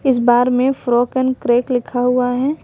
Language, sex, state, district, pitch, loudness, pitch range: Hindi, female, Jharkhand, Ranchi, 250 Hz, -16 LUFS, 245-260 Hz